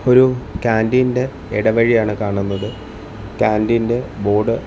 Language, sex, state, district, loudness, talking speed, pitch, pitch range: Malayalam, male, Kerala, Thiruvananthapuram, -17 LUFS, 90 wpm, 110 Hz, 105-125 Hz